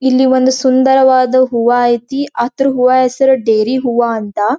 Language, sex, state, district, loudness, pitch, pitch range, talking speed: Kannada, female, Karnataka, Belgaum, -12 LUFS, 255 Hz, 240-260 Hz, 155 wpm